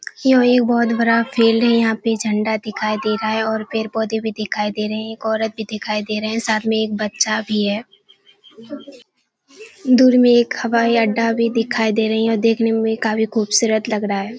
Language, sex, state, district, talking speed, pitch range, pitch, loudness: Hindi, female, Bihar, Kishanganj, 220 wpm, 215-235 Hz, 220 Hz, -18 LUFS